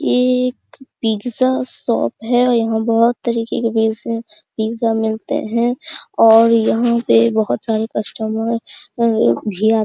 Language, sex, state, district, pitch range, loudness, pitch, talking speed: Hindi, female, Bihar, Araria, 220-245 Hz, -17 LUFS, 230 Hz, 140 wpm